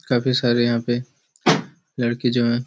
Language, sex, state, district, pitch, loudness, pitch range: Hindi, male, Chhattisgarh, Raigarh, 120 Hz, -21 LUFS, 120-125 Hz